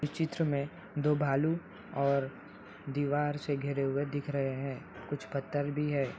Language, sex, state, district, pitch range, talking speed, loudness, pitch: Hindi, male, Uttar Pradesh, Hamirpur, 140-150 Hz, 165 wpm, -33 LUFS, 145 Hz